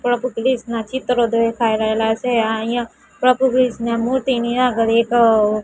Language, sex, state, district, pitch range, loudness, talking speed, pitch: Gujarati, female, Gujarat, Gandhinagar, 225-250 Hz, -18 LUFS, 150 wpm, 235 Hz